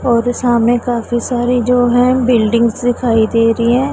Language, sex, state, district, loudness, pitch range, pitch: Hindi, female, Punjab, Pathankot, -13 LUFS, 235-245 Hz, 240 Hz